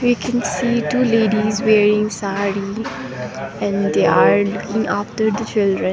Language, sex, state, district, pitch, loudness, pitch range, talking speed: English, female, Sikkim, Gangtok, 215 Hz, -18 LUFS, 200-225 Hz, 140 wpm